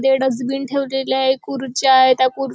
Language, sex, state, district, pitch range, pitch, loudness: Marathi, female, Maharashtra, Chandrapur, 260-270 Hz, 265 Hz, -17 LUFS